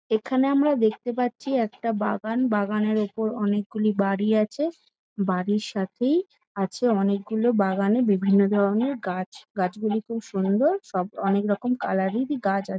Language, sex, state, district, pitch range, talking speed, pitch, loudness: Bengali, female, West Bengal, Jalpaiguri, 200-240 Hz, 155 wpm, 215 Hz, -24 LUFS